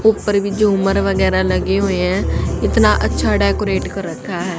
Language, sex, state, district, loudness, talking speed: Hindi, female, Haryana, Charkhi Dadri, -16 LUFS, 170 wpm